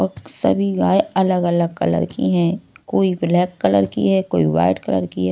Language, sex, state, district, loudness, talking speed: Hindi, female, Maharashtra, Washim, -18 LUFS, 190 wpm